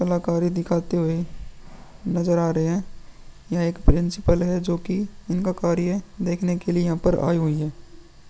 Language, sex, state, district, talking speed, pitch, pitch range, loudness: Hindi, male, Uttar Pradesh, Muzaffarnagar, 165 wpm, 175 Hz, 170-180 Hz, -23 LUFS